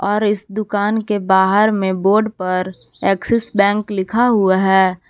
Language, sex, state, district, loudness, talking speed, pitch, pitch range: Hindi, female, Jharkhand, Palamu, -16 LUFS, 155 wpm, 200 Hz, 190-210 Hz